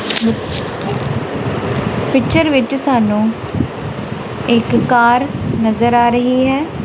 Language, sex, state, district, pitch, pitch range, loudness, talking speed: Punjabi, female, Punjab, Kapurthala, 240 Hz, 225-260 Hz, -15 LUFS, 80 wpm